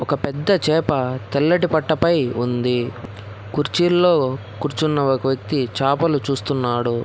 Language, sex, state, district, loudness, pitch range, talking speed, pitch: Telugu, male, Telangana, Hyderabad, -19 LUFS, 120-155 Hz, 100 wpm, 140 Hz